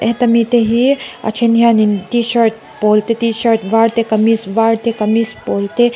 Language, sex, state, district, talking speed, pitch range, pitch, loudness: Mizo, female, Mizoram, Aizawl, 220 wpm, 220-235 Hz, 230 Hz, -14 LUFS